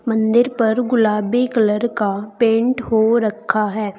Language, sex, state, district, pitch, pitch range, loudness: Hindi, female, Uttar Pradesh, Saharanpur, 225 Hz, 210-235 Hz, -17 LUFS